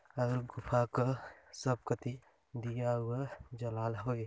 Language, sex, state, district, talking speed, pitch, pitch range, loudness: Hindi, male, Chhattisgarh, Balrampur, 125 wpm, 120 Hz, 120-125 Hz, -37 LUFS